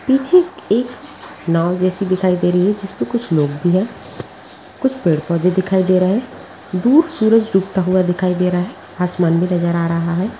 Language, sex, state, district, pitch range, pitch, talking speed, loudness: Hindi, female, Bihar, Gaya, 175-220 Hz, 185 Hz, 215 wpm, -16 LUFS